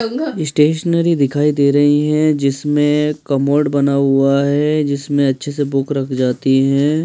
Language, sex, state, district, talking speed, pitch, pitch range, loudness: Hindi, male, Madhya Pradesh, Bhopal, 145 wpm, 145 Hz, 140-150 Hz, -15 LUFS